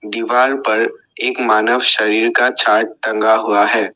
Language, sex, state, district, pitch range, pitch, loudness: Hindi, male, Assam, Sonitpur, 110-115 Hz, 110 Hz, -14 LUFS